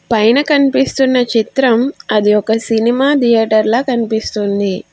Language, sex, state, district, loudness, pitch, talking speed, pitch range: Telugu, female, Telangana, Hyderabad, -13 LUFS, 230 Hz, 95 wpm, 220-260 Hz